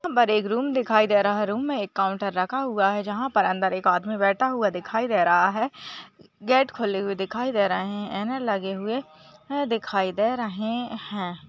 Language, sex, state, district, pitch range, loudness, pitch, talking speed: Hindi, female, Maharashtra, Nagpur, 195-240 Hz, -24 LUFS, 210 Hz, 195 wpm